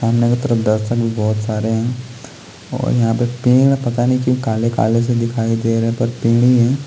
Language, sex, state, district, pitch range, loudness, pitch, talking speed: Hindi, male, Bihar, Gopalganj, 115-125 Hz, -16 LUFS, 120 Hz, 155 wpm